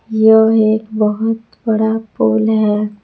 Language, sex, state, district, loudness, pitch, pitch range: Hindi, female, Jharkhand, Palamu, -14 LUFS, 220 Hz, 210-220 Hz